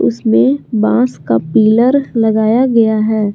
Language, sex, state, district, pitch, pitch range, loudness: Hindi, female, Jharkhand, Garhwa, 220 Hz, 205-240 Hz, -12 LUFS